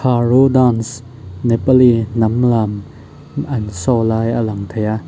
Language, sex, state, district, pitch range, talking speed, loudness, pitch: Mizo, male, Mizoram, Aizawl, 110-125 Hz, 140 wpm, -15 LUFS, 115 Hz